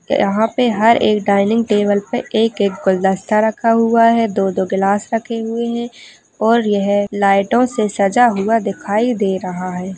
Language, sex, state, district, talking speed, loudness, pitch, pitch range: Hindi, female, Chhattisgarh, Balrampur, 170 wpm, -16 LUFS, 215 Hz, 200-230 Hz